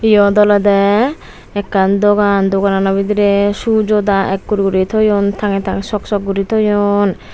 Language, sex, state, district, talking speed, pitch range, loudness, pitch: Chakma, female, Tripura, Unakoti, 145 wpm, 195-210 Hz, -13 LUFS, 205 Hz